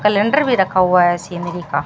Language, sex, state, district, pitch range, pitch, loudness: Hindi, female, Rajasthan, Bikaner, 175-210 Hz, 180 Hz, -16 LUFS